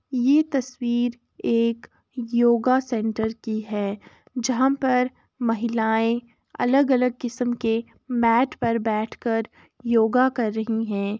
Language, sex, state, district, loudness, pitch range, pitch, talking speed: Hindi, female, Uttar Pradesh, Jalaun, -23 LUFS, 225-250 Hz, 235 Hz, 125 wpm